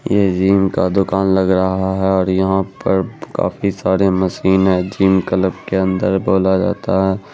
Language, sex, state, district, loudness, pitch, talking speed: Hindi, male, Bihar, Araria, -16 LUFS, 95 Hz, 165 wpm